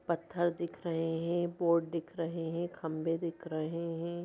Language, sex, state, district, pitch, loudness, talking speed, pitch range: Hindi, female, Bihar, Jahanabad, 170 Hz, -35 LUFS, 170 wpm, 165-170 Hz